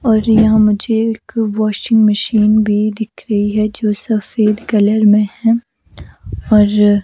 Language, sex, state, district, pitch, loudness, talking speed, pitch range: Hindi, female, Himachal Pradesh, Shimla, 215 Hz, -13 LUFS, 145 wpm, 210-225 Hz